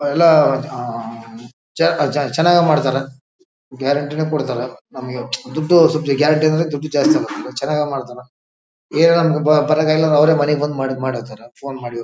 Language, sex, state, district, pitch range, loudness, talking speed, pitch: Kannada, male, Karnataka, Bellary, 125-155 Hz, -17 LUFS, 135 wpm, 145 Hz